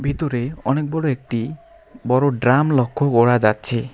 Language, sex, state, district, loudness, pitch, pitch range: Bengali, male, West Bengal, Alipurduar, -19 LUFS, 130 Hz, 120-145 Hz